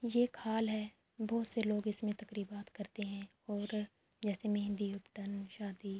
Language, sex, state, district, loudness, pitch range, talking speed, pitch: Urdu, female, Andhra Pradesh, Anantapur, -40 LUFS, 205-220 Hz, 150 wpm, 210 Hz